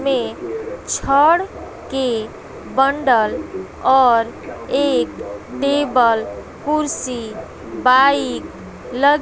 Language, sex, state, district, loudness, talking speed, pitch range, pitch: Hindi, female, Bihar, West Champaran, -18 LUFS, 65 wpm, 245-290 Hz, 270 Hz